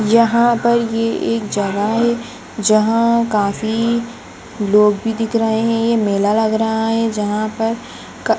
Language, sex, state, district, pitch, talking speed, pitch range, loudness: Hindi, female, Uttarakhand, Tehri Garhwal, 225 Hz, 155 wpm, 215-230 Hz, -16 LUFS